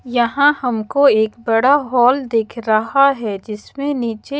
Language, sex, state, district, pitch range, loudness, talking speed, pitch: Hindi, female, Haryana, Charkhi Dadri, 220-275 Hz, -16 LUFS, 135 wpm, 240 Hz